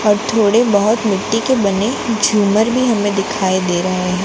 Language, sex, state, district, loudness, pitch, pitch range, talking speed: Hindi, female, Gujarat, Gandhinagar, -15 LUFS, 210 Hz, 195-225 Hz, 185 wpm